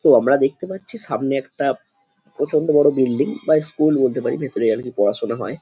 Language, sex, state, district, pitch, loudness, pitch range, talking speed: Bengali, male, West Bengal, Dakshin Dinajpur, 140 Hz, -19 LUFS, 130-155 Hz, 190 wpm